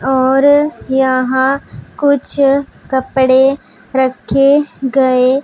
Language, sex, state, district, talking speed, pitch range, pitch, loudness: Hindi, female, Punjab, Pathankot, 65 wpm, 260-275 Hz, 265 Hz, -13 LUFS